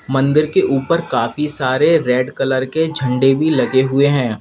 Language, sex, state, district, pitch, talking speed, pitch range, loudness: Hindi, male, Uttar Pradesh, Lalitpur, 135 Hz, 175 wpm, 130-155 Hz, -15 LUFS